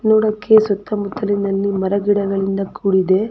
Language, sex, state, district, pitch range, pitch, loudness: Kannada, female, Karnataka, Chamarajanagar, 195-210 Hz, 200 Hz, -17 LUFS